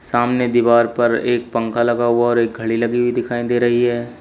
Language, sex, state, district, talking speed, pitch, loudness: Hindi, male, Uttar Pradesh, Shamli, 225 wpm, 120 Hz, -17 LUFS